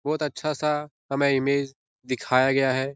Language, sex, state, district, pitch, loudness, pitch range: Hindi, male, Bihar, Jahanabad, 135 Hz, -24 LUFS, 130-150 Hz